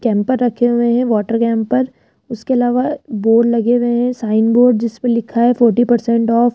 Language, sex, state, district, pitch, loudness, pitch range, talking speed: Hindi, female, Rajasthan, Jaipur, 235 Hz, -15 LUFS, 230-245 Hz, 200 wpm